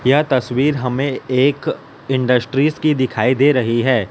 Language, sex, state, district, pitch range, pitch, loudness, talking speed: Hindi, male, Gujarat, Valsad, 125-140 Hz, 130 Hz, -17 LUFS, 145 wpm